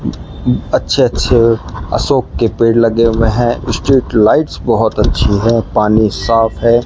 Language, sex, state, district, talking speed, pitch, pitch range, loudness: Hindi, male, Rajasthan, Bikaner, 140 wpm, 115 Hz, 110-115 Hz, -12 LUFS